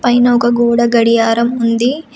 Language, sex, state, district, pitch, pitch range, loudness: Telugu, female, Telangana, Komaram Bheem, 235 Hz, 230-245 Hz, -12 LUFS